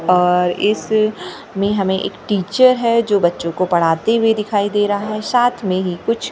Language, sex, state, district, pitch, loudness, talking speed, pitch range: Hindi, female, Maharashtra, Gondia, 205 Hz, -16 LUFS, 200 wpm, 180-220 Hz